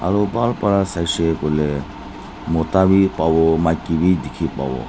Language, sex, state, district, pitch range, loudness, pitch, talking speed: Nagamese, male, Nagaland, Dimapur, 80-100 Hz, -18 LUFS, 85 Hz, 135 wpm